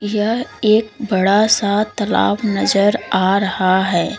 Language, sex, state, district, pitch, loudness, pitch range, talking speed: Hindi, female, Uttar Pradesh, Lalitpur, 205 Hz, -16 LUFS, 195-215 Hz, 130 wpm